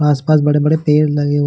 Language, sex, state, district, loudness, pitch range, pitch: Hindi, male, Chhattisgarh, Bilaspur, -14 LUFS, 145-150 Hz, 150 Hz